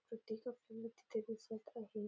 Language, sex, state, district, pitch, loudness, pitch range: Marathi, female, Maharashtra, Nagpur, 225 Hz, -48 LUFS, 220-230 Hz